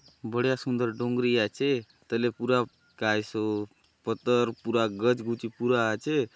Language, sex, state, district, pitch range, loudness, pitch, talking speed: Halbi, male, Chhattisgarh, Bastar, 115-125 Hz, -28 LUFS, 120 Hz, 125 wpm